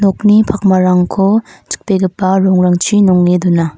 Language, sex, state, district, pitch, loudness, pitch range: Garo, female, Meghalaya, North Garo Hills, 190 Hz, -11 LUFS, 180-200 Hz